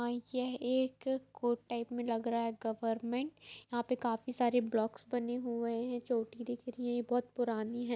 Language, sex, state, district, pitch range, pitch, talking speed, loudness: Hindi, female, Bihar, Saran, 235-245 Hz, 240 Hz, 190 wpm, -36 LUFS